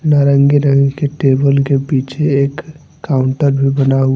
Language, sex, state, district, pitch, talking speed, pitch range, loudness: Hindi, male, Jharkhand, Deoghar, 140 Hz, 160 wpm, 135-145 Hz, -13 LUFS